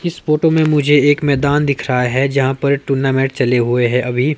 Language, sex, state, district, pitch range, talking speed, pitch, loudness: Hindi, male, Himachal Pradesh, Shimla, 130-145 Hz, 220 wpm, 140 Hz, -15 LUFS